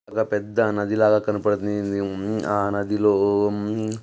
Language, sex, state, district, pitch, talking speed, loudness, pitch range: Telugu, male, Andhra Pradesh, Guntur, 105 Hz, 105 wpm, -22 LUFS, 100-105 Hz